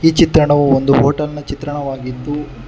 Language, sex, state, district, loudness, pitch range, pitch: Kannada, male, Karnataka, Bangalore, -15 LUFS, 135-150 Hz, 145 Hz